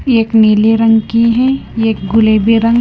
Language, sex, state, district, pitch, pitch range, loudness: Hindi, female, Punjab, Kapurthala, 225 Hz, 220-230 Hz, -11 LUFS